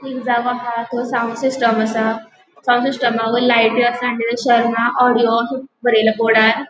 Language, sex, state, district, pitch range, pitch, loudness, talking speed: Konkani, female, Goa, North and South Goa, 230-245 Hz, 240 Hz, -16 LUFS, 135 wpm